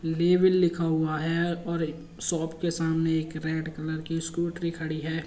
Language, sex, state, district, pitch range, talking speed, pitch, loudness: Hindi, male, Uttar Pradesh, Jyotiba Phule Nagar, 160-170 Hz, 180 wpm, 165 Hz, -27 LUFS